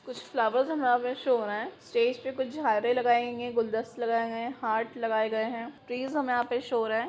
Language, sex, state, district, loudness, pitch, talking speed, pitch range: Hindi, female, Bihar, Bhagalpur, -29 LUFS, 240 Hz, 235 wpm, 230-250 Hz